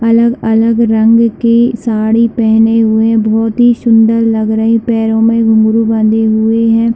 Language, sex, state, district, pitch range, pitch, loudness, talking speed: Hindi, female, Chhattisgarh, Bilaspur, 220-230 Hz, 225 Hz, -10 LUFS, 155 wpm